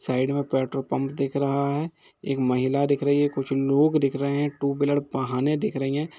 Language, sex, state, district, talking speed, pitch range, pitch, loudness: Hindi, male, Bihar, Gopalganj, 225 wpm, 135-145 Hz, 140 Hz, -24 LUFS